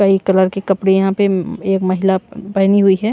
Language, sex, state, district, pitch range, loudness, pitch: Hindi, female, Punjab, Pathankot, 190-200 Hz, -15 LUFS, 195 Hz